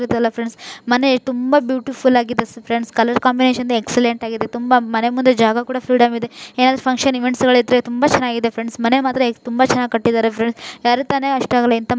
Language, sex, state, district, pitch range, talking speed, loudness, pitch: Kannada, female, Karnataka, Dharwad, 235-255 Hz, 155 wpm, -17 LUFS, 245 Hz